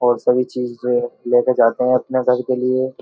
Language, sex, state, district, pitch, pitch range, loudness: Hindi, male, Uttar Pradesh, Jyotiba Phule Nagar, 125 Hz, 120-125 Hz, -18 LUFS